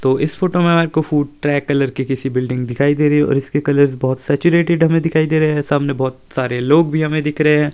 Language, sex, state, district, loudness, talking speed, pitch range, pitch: Hindi, male, Himachal Pradesh, Shimla, -16 LUFS, 270 wpm, 135-155 Hz, 145 Hz